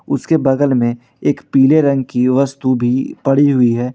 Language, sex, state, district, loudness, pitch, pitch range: Hindi, male, Jharkhand, Ranchi, -14 LUFS, 135 Hz, 125-140 Hz